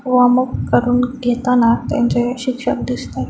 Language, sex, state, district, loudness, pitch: Marathi, female, Maharashtra, Chandrapur, -17 LUFS, 245 Hz